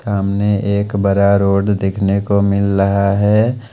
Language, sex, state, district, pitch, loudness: Hindi, male, Punjab, Pathankot, 100 Hz, -15 LUFS